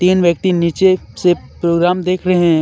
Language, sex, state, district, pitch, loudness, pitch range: Hindi, male, Jharkhand, Deoghar, 180 Hz, -15 LUFS, 170-185 Hz